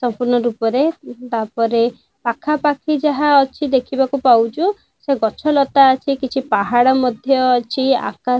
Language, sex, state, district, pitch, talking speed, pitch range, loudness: Odia, female, Odisha, Nuapada, 260 Hz, 135 wpm, 240-280 Hz, -17 LUFS